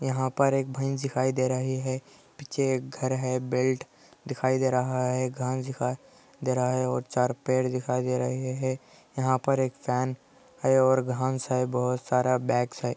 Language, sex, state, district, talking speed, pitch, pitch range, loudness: Hindi, male, Andhra Pradesh, Anantapur, 160 wpm, 130 Hz, 125-130 Hz, -27 LUFS